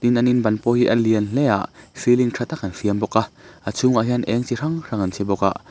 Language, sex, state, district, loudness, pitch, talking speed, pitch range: Mizo, male, Mizoram, Aizawl, -20 LUFS, 120 Hz, 295 wpm, 105-125 Hz